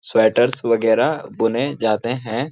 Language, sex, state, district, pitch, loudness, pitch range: Hindi, male, Uttarakhand, Uttarkashi, 115 Hz, -19 LUFS, 115-125 Hz